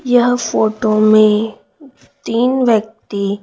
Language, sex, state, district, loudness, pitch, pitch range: Hindi, female, Chhattisgarh, Raipur, -14 LUFS, 220 Hz, 215-245 Hz